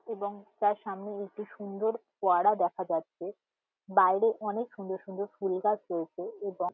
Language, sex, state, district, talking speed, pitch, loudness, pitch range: Bengali, female, West Bengal, Jhargram, 140 wpm, 200 Hz, -31 LUFS, 185-210 Hz